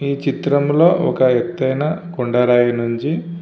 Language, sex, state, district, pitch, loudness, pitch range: Telugu, male, Andhra Pradesh, Visakhapatnam, 140 Hz, -17 LUFS, 125-165 Hz